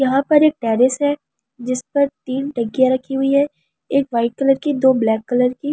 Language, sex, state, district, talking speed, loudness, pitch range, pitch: Hindi, female, Delhi, New Delhi, 210 wpm, -18 LUFS, 250-280 Hz, 265 Hz